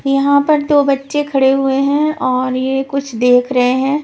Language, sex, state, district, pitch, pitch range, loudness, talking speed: Hindi, female, Punjab, Pathankot, 275 Hz, 260-285 Hz, -14 LUFS, 195 wpm